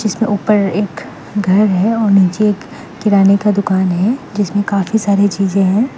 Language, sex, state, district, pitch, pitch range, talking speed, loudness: Hindi, female, Meghalaya, West Garo Hills, 205 Hz, 195-210 Hz, 160 wpm, -14 LUFS